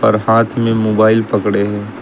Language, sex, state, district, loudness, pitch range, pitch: Hindi, male, Uttar Pradesh, Lucknow, -14 LUFS, 105-115 Hz, 110 Hz